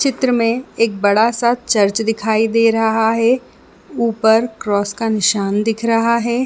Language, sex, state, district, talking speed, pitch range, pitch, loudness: Hindi, female, Chhattisgarh, Bilaspur, 150 wpm, 220-235 Hz, 225 Hz, -16 LUFS